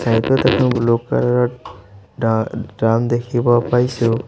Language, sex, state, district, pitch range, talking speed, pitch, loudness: Assamese, male, Assam, Sonitpur, 115-125 Hz, 100 wpm, 120 Hz, -17 LUFS